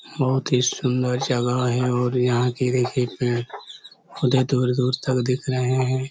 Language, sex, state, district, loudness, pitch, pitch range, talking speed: Hindi, male, Chhattisgarh, Korba, -22 LUFS, 125 Hz, 125-130 Hz, 155 wpm